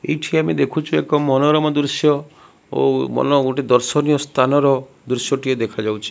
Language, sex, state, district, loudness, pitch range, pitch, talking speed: Odia, male, Odisha, Malkangiri, -18 LUFS, 125-150 Hz, 140 Hz, 130 wpm